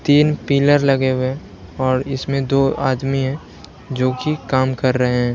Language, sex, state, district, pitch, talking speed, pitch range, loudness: Hindi, male, Uttar Pradesh, Lalitpur, 135 Hz, 180 wpm, 130-140 Hz, -18 LUFS